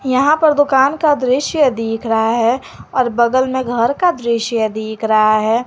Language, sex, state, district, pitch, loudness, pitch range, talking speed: Hindi, female, Jharkhand, Garhwa, 245 Hz, -15 LUFS, 225-270 Hz, 180 wpm